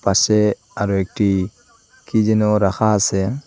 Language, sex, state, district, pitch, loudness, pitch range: Bengali, male, Assam, Hailakandi, 105 Hz, -18 LUFS, 100-110 Hz